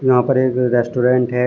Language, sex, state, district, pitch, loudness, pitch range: Hindi, male, Uttar Pradesh, Shamli, 125 Hz, -16 LUFS, 125-130 Hz